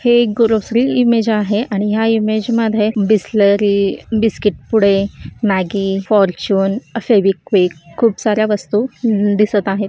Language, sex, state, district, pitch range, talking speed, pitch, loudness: Marathi, female, Maharashtra, Solapur, 200-225 Hz, 135 wpm, 210 Hz, -15 LUFS